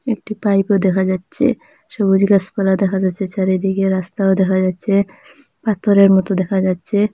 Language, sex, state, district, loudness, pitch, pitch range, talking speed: Bengali, female, Assam, Hailakandi, -16 LUFS, 195 Hz, 190-200 Hz, 135 wpm